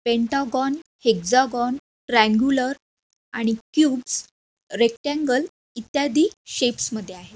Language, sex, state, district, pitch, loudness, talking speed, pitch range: Marathi, female, Maharashtra, Aurangabad, 250 Hz, -22 LUFS, 80 wpm, 230-285 Hz